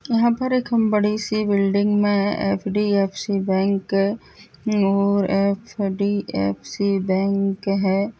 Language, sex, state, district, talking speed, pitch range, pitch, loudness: Hindi, female, Maharashtra, Dhule, 115 wpm, 195-210 Hz, 200 Hz, -21 LUFS